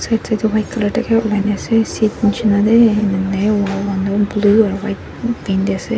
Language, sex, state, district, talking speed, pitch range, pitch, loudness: Nagamese, female, Nagaland, Dimapur, 200 wpm, 200-225 Hz, 210 Hz, -16 LUFS